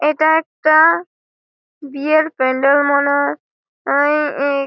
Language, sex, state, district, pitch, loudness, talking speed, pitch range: Bengali, female, West Bengal, Malda, 290 Hz, -15 LUFS, 105 wpm, 280-310 Hz